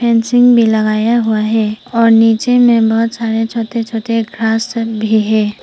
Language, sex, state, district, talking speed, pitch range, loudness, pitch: Hindi, female, Arunachal Pradesh, Papum Pare, 170 wpm, 220-230 Hz, -13 LUFS, 225 Hz